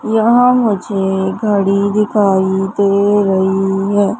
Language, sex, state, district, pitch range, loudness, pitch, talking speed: Hindi, female, Madhya Pradesh, Umaria, 195-210 Hz, -13 LUFS, 200 Hz, 100 wpm